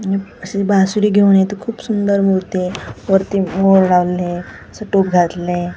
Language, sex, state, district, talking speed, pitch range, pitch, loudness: Marathi, female, Maharashtra, Washim, 165 wpm, 180-200 Hz, 195 Hz, -15 LUFS